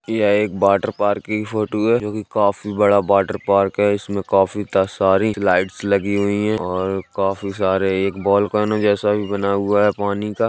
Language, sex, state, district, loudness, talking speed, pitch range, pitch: Hindi, male, Uttar Pradesh, Jalaun, -18 LUFS, 195 wpm, 100-105 Hz, 100 Hz